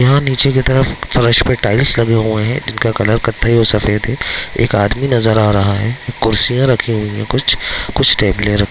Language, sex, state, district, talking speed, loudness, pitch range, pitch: Hindi, male, Bihar, Begusarai, 215 wpm, -13 LUFS, 105-125 Hz, 115 Hz